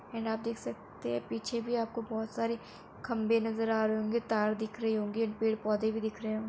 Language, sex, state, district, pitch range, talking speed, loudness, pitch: Hindi, female, Uttar Pradesh, Etah, 215-230 Hz, 240 wpm, -33 LUFS, 220 Hz